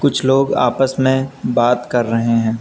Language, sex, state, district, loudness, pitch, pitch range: Hindi, male, Uttar Pradesh, Lucknow, -16 LUFS, 125 Hz, 120-135 Hz